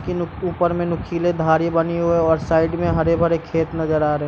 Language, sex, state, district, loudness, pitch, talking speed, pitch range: Hindi, male, Bihar, Gopalganj, -19 LUFS, 165 Hz, 280 wpm, 160-170 Hz